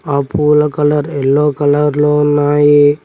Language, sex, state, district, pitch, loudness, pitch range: Telugu, male, Telangana, Mahabubabad, 145 Hz, -12 LUFS, 145-150 Hz